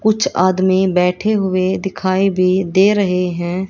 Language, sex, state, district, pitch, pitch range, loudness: Hindi, female, Haryana, Rohtak, 185 Hz, 185-195 Hz, -15 LUFS